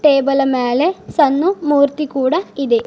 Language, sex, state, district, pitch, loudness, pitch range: Kannada, female, Karnataka, Bidar, 280 Hz, -16 LUFS, 265-300 Hz